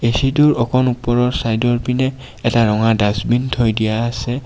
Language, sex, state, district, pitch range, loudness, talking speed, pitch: Assamese, male, Assam, Kamrup Metropolitan, 115-125 Hz, -17 LUFS, 150 wpm, 120 Hz